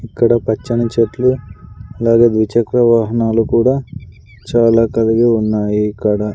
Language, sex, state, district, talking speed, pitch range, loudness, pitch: Telugu, male, Andhra Pradesh, Sri Satya Sai, 95 wpm, 110-120 Hz, -14 LUFS, 115 Hz